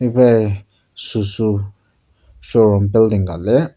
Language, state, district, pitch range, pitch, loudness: Ao, Nagaland, Kohima, 100-115 Hz, 110 Hz, -16 LUFS